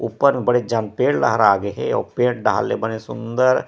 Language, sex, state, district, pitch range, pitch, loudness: Chhattisgarhi, male, Chhattisgarh, Rajnandgaon, 115-125 Hz, 125 Hz, -19 LUFS